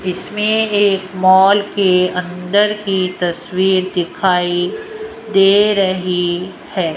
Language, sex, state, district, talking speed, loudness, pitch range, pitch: Hindi, female, Rajasthan, Jaipur, 95 wpm, -15 LUFS, 180-205 Hz, 190 Hz